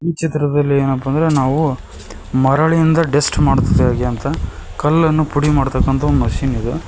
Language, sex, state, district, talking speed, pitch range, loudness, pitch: Kannada, male, Karnataka, Koppal, 130 wpm, 125-155 Hz, -16 LUFS, 140 Hz